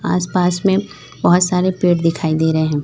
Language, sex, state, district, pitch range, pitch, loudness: Hindi, female, Chhattisgarh, Raipur, 160-180 Hz, 175 Hz, -16 LUFS